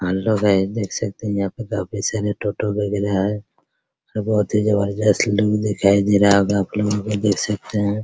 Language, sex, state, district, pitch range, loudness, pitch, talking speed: Hindi, male, Bihar, Araria, 100-105 Hz, -20 LUFS, 105 Hz, 200 wpm